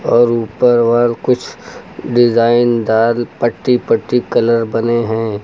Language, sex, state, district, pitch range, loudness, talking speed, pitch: Hindi, male, Uttar Pradesh, Lucknow, 115-120 Hz, -14 LUFS, 110 wpm, 120 Hz